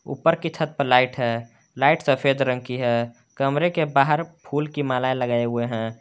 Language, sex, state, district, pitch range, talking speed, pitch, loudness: Hindi, male, Jharkhand, Garhwa, 120-150 Hz, 200 wpm, 130 Hz, -22 LUFS